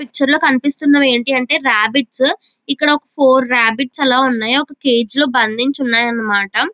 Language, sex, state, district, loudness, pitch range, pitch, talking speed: Telugu, female, Andhra Pradesh, Chittoor, -14 LUFS, 245-285 Hz, 265 Hz, 150 wpm